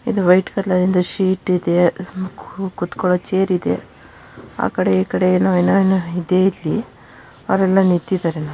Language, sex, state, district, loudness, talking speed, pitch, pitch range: Kannada, female, Karnataka, Shimoga, -18 LUFS, 140 wpm, 185 Hz, 180-190 Hz